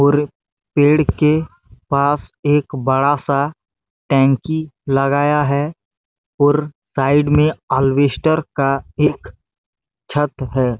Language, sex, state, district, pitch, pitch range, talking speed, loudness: Hindi, male, Chhattisgarh, Bastar, 140 Hz, 135-150 Hz, 100 wpm, -17 LUFS